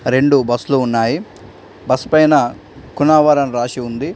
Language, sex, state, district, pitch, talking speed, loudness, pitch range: Telugu, male, Telangana, Adilabad, 135 Hz, 130 wpm, -15 LUFS, 120-145 Hz